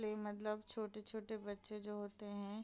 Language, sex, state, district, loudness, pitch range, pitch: Hindi, female, Bihar, Madhepura, -46 LUFS, 205-215 Hz, 210 Hz